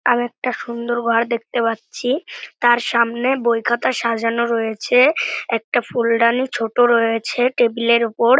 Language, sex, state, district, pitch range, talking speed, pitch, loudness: Bengali, male, West Bengal, North 24 Parganas, 230-245 Hz, 135 wpm, 235 Hz, -18 LUFS